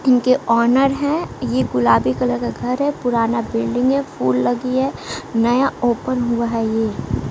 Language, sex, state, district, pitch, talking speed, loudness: Hindi, female, Bihar, West Champaran, 235 Hz, 165 wpm, -18 LUFS